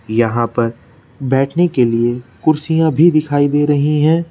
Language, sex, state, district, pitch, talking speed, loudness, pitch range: Hindi, male, Madhya Pradesh, Bhopal, 145 Hz, 155 wpm, -15 LUFS, 120-155 Hz